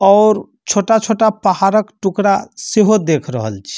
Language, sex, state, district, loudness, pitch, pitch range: Maithili, male, Bihar, Samastipur, -14 LUFS, 205 Hz, 190-215 Hz